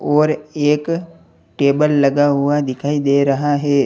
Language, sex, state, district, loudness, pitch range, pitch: Hindi, male, Uttar Pradesh, Lalitpur, -16 LUFS, 140-150 Hz, 145 Hz